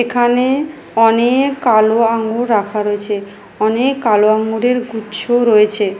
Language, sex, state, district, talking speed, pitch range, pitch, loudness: Bengali, female, West Bengal, Malda, 120 wpm, 215-245 Hz, 225 Hz, -14 LUFS